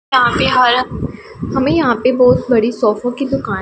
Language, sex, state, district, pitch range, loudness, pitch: Hindi, female, Punjab, Pathankot, 240-265 Hz, -14 LUFS, 250 Hz